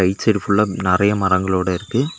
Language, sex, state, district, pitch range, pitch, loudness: Tamil, male, Tamil Nadu, Nilgiris, 95-105 Hz, 100 Hz, -18 LUFS